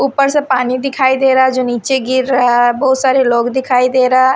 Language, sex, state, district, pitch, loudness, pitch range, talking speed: Hindi, female, Odisha, Sambalpur, 260 Hz, -13 LUFS, 250-265 Hz, 220 wpm